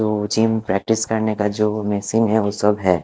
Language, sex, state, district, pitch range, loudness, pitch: Hindi, male, Odisha, Khordha, 105-110 Hz, -19 LUFS, 105 Hz